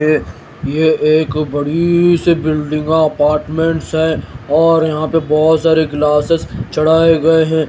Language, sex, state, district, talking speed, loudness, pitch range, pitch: Hindi, male, Haryana, Rohtak, 125 wpm, -13 LUFS, 150-160 Hz, 160 Hz